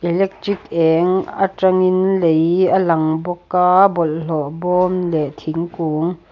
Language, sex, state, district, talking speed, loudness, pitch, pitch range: Mizo, female, Mizoram, Aizawl, 115 wpm, -17 LUFS, 175 Hz, 160-185 Hz